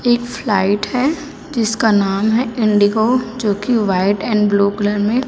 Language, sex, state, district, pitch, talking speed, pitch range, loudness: Hindi, female, Chhattisgarh, Raipur, 220 Hz, 160 wpm, 205-240 Hz, -16 LUFS